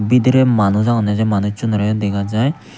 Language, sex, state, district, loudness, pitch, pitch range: Chakma, male, Tripura, Unakoti, -16 LUFS, 110 Hz, 105-120 Hz